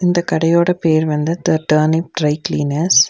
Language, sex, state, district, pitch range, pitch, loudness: Tamil, female, Tamil Nadu, Nilgiris, 155-170 Hz, 160 Hz, -16 LUFS